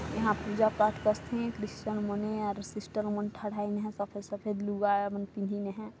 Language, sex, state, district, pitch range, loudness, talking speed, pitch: Hindi, male, Chhattisgarh, Jashpur, 205-215 Hz, -33 LUFS, 100 wpm, 210 Hz